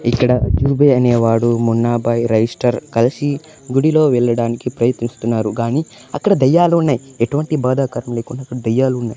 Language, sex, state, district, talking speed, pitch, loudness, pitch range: Telugu, male, Andhra Pradesh, Manyam, 125 wpm, 125 Hz, -16 LUFS, 115-135 Hz